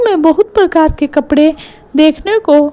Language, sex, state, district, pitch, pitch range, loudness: Hindi, female, Gujarat, Gandhinagar, 310 Hz, 295-395 Hz, -11 LUFS